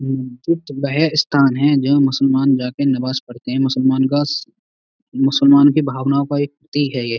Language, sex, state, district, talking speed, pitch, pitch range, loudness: Hindi, male, Uttar Pradesh, Budaun, 160 wpm, 140 Hz, 130-145 Hz, -16 LUFS